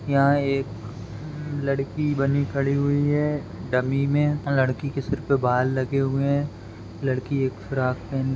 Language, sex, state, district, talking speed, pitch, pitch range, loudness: Hindi, female, Uttar Pradesh, Muzaffarnagar, 150 wpm, 140 Hz, 130-145 Hz, -24 LUFS